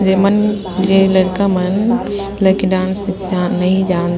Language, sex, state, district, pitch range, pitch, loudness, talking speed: Surgujia, female, Chhattisgarh, Sarguja, 185-200 Hz, 190 Hz, -15 LUFS, 170 wpm